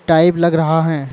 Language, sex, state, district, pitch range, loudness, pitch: Chhattisgarhi, male, Chhattisgarh, Raigarh, 160-170 Hz, -14 LUFS, 160 Hz